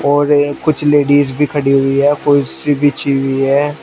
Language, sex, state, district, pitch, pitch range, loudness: Hindi, male, Uttar Pradesh, Shamli, 145 Hz, 140-145 Hz, -13 LUFS